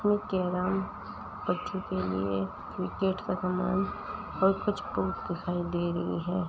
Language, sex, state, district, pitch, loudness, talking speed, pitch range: Hindi, female, Uttar Pradesh, Muzaffarnagar, 180 Hz, -31 LUFS, 140 wpm, 175-195 Hz